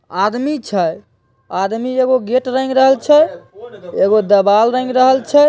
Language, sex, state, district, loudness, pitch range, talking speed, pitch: Maithili, female, Bihar, Begusarai, -14 LUFS, 205-265 Hz, 140 wpm, 255 Hz